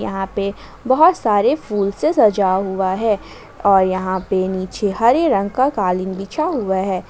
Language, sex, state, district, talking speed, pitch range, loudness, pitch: Hindi, female, Jharkhand, Ranchi, 170 wpm, 190-225 Hz, -18 LUFS, 195 Hz